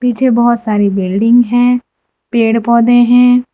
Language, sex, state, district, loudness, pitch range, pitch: Hindi, female, Gujarat, Valsad, -11 LUFS, 230-245 Hz, 240 Hz